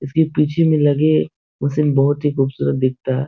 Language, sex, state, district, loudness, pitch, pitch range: Hindi, male, Bihar, Supaul, -17 LUFS, 145 Hz, 135-150 Hz